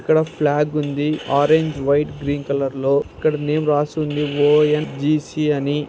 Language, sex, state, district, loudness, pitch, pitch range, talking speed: Telugu, male, Andhra Pradesh, Anantapur, -19 LUFS, 150 Hz, 145-150 Hz, 135 wpm